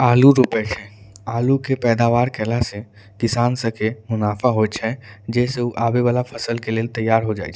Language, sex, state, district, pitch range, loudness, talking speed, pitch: Angika, male, Bihar, Bhagalpur, 110-120 Hz, -19 LUFS, 200 wpm, 115 Hz